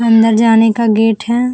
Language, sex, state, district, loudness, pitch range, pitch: Hindi, female, Uttar Pradesh, Jalaun, -11 LUFS, 225-235 Hz, 225 Hz